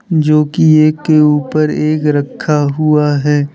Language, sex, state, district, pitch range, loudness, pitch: Hindi, male, Uttar Pradesh, Lalitpur, 150-155 Hz, -12 LUFS, 150 Hz